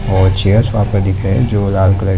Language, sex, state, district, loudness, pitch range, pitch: Hindi, male, Bihar, Darbhanga, -13 LUFS, 95-105 Hz, 100 Hz